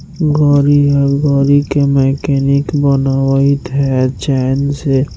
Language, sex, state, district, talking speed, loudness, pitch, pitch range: Hindi, male, Bihar, Muzaffarpur, 105 wpm, -13 LUFS, 140 Hz, 135-145 Hz